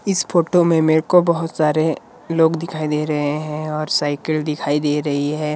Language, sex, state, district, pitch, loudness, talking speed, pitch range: Hindi, male, Himachal Pradesh, Shimla, 155 Hz, -18 LUFS, 195 wpm, 150-165 Hz